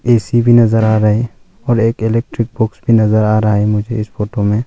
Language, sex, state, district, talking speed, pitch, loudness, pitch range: Hindi, male, Arunachal Pradesh, Longding, 245 wpm, 110 Hz, -13 LUFS, 105-115 Hz